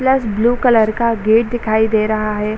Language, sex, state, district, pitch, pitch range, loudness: Hindi, female, Bihar, Sitamarhi, 220 Hz, 215-235 Hz, -15 LUFS